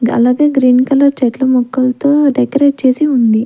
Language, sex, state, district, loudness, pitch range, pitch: Telugu, female, Andhra Pradesh, Sri Satya Sai, -11 LUFS, 250-280 Hz, 260 Hz